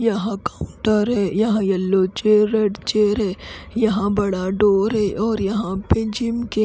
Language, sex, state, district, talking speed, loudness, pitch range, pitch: Hindi, female, Odisha, Khordha, 160 wpm, -20 LUFS, 195-220 Hz, 210 Hz